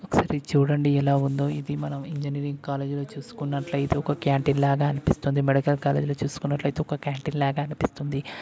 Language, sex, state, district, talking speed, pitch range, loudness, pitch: Telugu, male, Andhra Pradesh, Guntur, 155 wpm, 140-145 Hz, -26 LUFS, 140 Hz